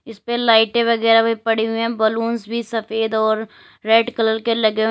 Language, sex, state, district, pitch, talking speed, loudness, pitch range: Hindi, female, Uttar Pradesh, Lalitpur, 225 Hz, 205 wpm, -18 LUFS, 220-230 Hz